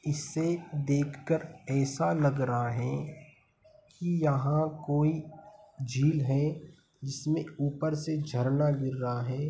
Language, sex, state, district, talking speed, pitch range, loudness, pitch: Hindi, male, Bihar, Sitamarhi, 120 wpm, 135-155 Hz, -30 LUFS, 150 Hz